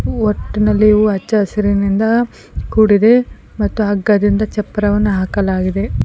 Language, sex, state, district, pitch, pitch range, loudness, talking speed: Kannada, female, Karnataka, Koppal, 210 Hz, 200-215 Hz, -14 LUFS, 90 wpm